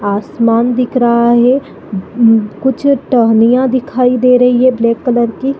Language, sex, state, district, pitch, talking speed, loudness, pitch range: Hindi, female, Chhattisgarh, Bilaspur, 245 Hz, 140 wpm, -11 LUFS, 230-255 Hz